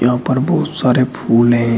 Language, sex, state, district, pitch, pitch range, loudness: Hindi, male, Uttar Pradesh, Shamli, 125 Hz, 120-135 Hz, -15 LUFS